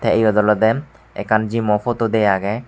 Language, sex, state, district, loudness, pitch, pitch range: Chakma, male, Tripura, West Tripura, -17 LUFS, 110 Hz, 105-115 Hz